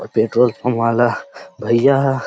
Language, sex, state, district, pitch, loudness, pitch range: Chhattisgarhi, male, Chhattisgarh, Rajnandgaon, 120 Hz, -16 LUFS, 115-125 Hz